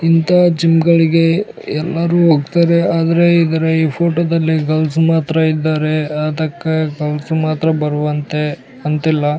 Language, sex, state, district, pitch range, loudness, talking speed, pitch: Kannada, male, Karnataka, Bellary, 155-165 Hz, -15 LUFS, 95 wpm, 160 Hz